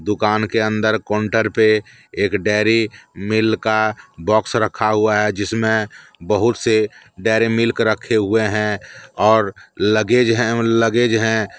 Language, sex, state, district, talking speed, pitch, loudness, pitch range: Hindi, male, Jharkhand, Deoghar, 135 wpm, 110 Hz, -17 LUFS, 105-115 Hz